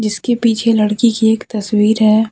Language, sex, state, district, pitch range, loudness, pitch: Hindi, female, Jharkhand, Deoghar, 215-230 Hz, -14 LUFS, 220 Hz